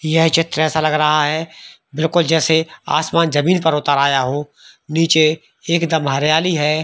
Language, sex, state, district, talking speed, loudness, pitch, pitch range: Hindi, male, Jharkhand, Sahebganj, 160 wpm, -16 LUFS, 155 Hz, 150-165 Hz